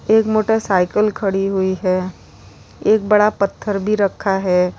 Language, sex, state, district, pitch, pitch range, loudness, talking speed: Hindi, female, Uttar Pradesh, Lalitpur, 195 Hz, 185-210 Hz, -17 LUFS, 140 wpm